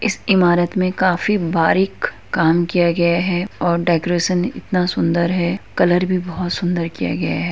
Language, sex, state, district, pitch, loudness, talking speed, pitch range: Hindi, female, Uttar Pradesh, Etah, 175 Hz, -18 LUFS, 165 wpm, 170-185 Hz